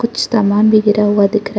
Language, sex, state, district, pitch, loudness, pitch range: Hindi, female, Arunachal Pradesh, Lower Dibang Valley, 210 Hz, -12 LUFS, 205-215 Hz